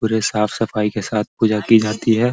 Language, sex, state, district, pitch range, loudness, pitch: Hindi, male, Bihar, Gaya, 105-110 Hz, -18 LUFS, 110 Hz